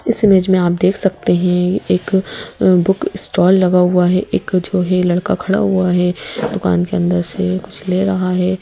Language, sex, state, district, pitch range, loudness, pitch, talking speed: Hindi, female, Madhya Pradesh, Bhopal, 180-190 Hz, -15 LUFS, 185 Hz, 195 wpm